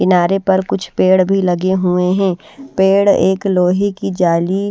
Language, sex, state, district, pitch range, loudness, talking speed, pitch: Hindi, female, Haryana, Rohtak, 180-195 Hz, -14 LUFS, 165 wpm, 190 Hz